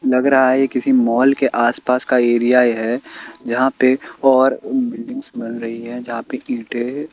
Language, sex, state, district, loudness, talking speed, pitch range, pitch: Hindi, male, Bihar, Kaimur, -17 LUFS, 185 wpm, 120-135 Hz, 130 Hz